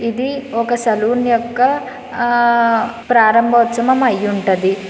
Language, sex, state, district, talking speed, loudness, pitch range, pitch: Telugu, female, Andhra Pradesh, Srikakulam, 100 wpm, -15 LUFS, 225-245 Hz, 235 Hz